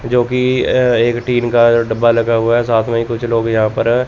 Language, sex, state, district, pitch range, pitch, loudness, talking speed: Hindi, male, Chandigarh, Chandigarh, 115-120 Hz, 115 Hz, -14 LUFS, 250 wpm